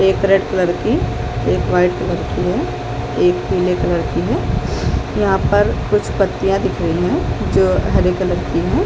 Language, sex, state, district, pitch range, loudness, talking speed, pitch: Hindi, female, Chhattisgarh, Balrampur, 120-190 Hz, -17 LUFS, 170 wpm, 180 Hz